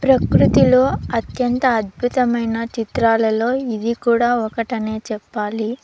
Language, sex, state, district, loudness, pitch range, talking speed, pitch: Telugu, female, Andhra Pradesh, Sri Satya Sai, -18 LUFS, 220-245 Hz, 80 wpm, 235 Hz